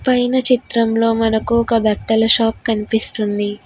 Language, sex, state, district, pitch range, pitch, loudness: Telugu, female, Telangana, Hyderabad, 220-235 Hz, 225 Hz, -16 LUFS